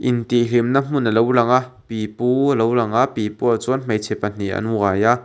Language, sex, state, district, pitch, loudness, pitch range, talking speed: Mizo, male, Mizoram, Aizawl, 120 Hz, -19 LUFS, 110-125 Hz, 195 wpm